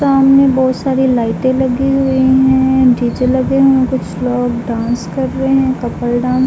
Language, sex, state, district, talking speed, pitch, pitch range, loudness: Hindi, female, Uttar Pradesh, Jalaun, 175 wpm, 260 Hz, 245-265 Hz, -13 LUFS